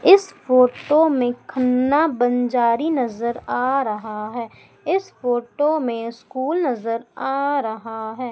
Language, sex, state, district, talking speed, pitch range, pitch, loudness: Hindi, female, Madhya Pradesh, Umaria, 120 wpm, 235-285 Hz, 250 Hz, -21 LUFS